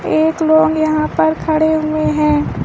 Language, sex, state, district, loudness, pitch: Hindi, female, Uttar Pradesh, Lucknow, -14 LUFS, 310 Hz